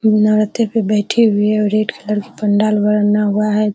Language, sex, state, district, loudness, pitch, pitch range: Hindi, female, Bihar, Araria, -15 LUFS, 210 Hz, 210-215 Hz